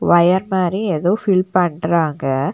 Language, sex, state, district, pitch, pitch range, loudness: Tamil, female, Tamil Nadu, Nilgiris, 180 Hz, 160-190 Hz, -17 LUFS